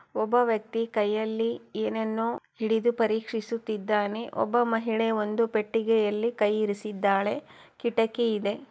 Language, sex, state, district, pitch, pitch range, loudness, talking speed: Kannada, female, Karnataka, Chamarajanagar, 225 Hz, 210-230 Hz, -27 LUFS, 95 wpm